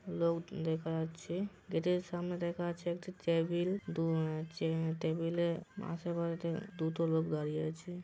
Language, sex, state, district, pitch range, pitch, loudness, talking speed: Bengali, male, West Bengal, Jhargram, 160-175 Hz, 170 Hz, -37 LUFS, 135 wpm